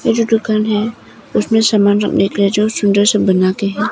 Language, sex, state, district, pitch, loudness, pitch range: Hindi, female, Arunachal Pradesh, Papum Pare, 210 Hz, -14 LUFS, 200-220 Hz